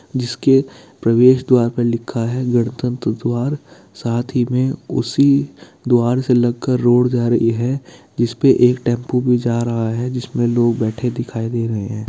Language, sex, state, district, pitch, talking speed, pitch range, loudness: Hindi, male, Bihar, Kishanganj, 120 Hz, 170 wpm, 120-125 Hz, -17 LUFS